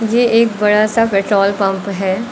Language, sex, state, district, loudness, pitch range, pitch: Hindi, female, Uttar Pradesh, Lucknow, -14 LUFS, 195-230 Hz, 210 Hz